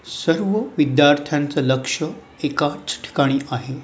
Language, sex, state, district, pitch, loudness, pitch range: Marathi, male, Maharashtra, Mumbai Suburban, 145 Hz, -20 LUFS, 135-150 Hz